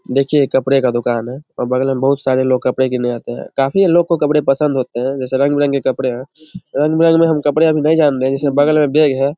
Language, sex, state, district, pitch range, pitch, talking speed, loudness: Hindi, male, Bihar, Samastipur, 130-150 Hz, 135 Hz, 230 wpm, -15 LUFS